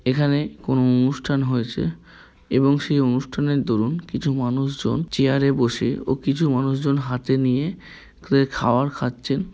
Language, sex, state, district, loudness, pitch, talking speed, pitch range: Bengali, male, West Bengal, Kolkata, -21 LUFS, 135 Hz, 125 wpm, 125-140 Hz